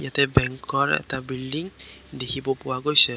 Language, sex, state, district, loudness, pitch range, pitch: Assamese, male, Assam, Kamrup Metropolitan, -23 LUFS, 130-140 Hz, 135 Hz